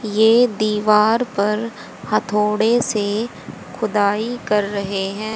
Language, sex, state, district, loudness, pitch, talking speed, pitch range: Hindi, female, Haryana, Charkhi Dadri, -18 LUFS, 215 Hz, 100 wpm, 210-225 Hz